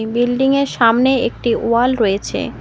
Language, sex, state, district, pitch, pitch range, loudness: Bengali, female, West Bengal, Cooch Behar, 240 Hz, 230-260 Hz, -16 LUFS